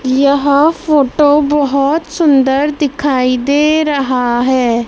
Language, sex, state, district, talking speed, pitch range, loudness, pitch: Hindi, female, Madhya Pradesh, Dhar, 100 wpm, 260-300 Hz, -12 LUFS, 280 Hz